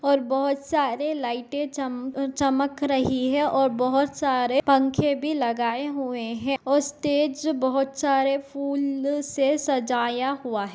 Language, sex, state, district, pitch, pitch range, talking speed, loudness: Hindi, female, Uttar Pradesh, Deoria, 275 Hz, 260-280 Hz, 145 wpm, -24 LUFS